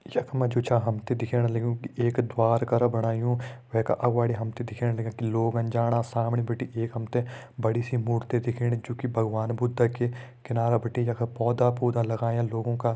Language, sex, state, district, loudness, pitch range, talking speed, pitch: Hindi, male, Uttarakhand, Uttarkashi, -27 LUFS, 115-120 Hz, 205 wpm, 120 Hz